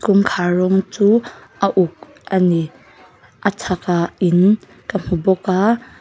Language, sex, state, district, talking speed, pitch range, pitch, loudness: Mizo, female, Mizoram, Aizawl, 140 wpm, 175-200 Hz, 190 Hz, -17 LUFS